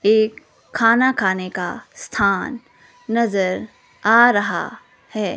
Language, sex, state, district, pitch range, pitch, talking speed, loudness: Hindi, female, Himachal Pradesh, Shimla, 190-235 Hz, 215 Hz, 100 wpm, -18 LUFS